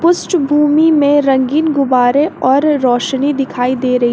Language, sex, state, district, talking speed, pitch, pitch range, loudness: Hindi, female, Jharkhand, Garhwa, 130 wpm, 280 Hz, 255-300 Hz, -12 LUFS